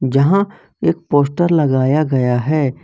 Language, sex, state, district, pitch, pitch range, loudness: Hindi, male, Jharkhand, Ranchi, 145 Hz, 130-165 Hz, -16 LUFS